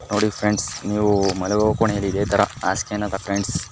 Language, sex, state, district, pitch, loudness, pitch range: Kannada, female, Karnataka, Mysore, 105 Hz, -21 LUFS, 100-105 Hz